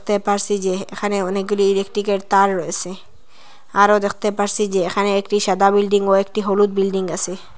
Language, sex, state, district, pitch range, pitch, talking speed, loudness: Bengali, female, Assam, Hailakandi, 195-205 Hz, 200 Hz, 175 wpm, -18 LUFS